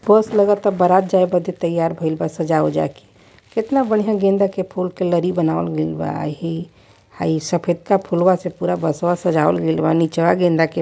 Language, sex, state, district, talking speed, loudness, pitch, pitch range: Hindi, male, Uttar Pradesh, Varanasi, 200 wpm, -18 LUFS, 175 Hz, 160-185 Hz